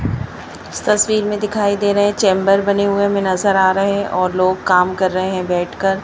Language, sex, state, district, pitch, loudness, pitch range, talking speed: Hindi, male, Madhya Pradesh, Bhopal, 195 Hz, -16 LUFS, 185-200 Hz, 230 wpm